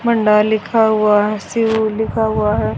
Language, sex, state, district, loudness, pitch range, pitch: Hindi, female, Haryana, Rohtak, -15 LUFS, 210-220 Hz, 215 Hz